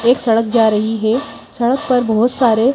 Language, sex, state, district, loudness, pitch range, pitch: Hindi, female, Madhya Pradesh, Bhopal, -15 LUFS, 225-250 Hz, 235 Hz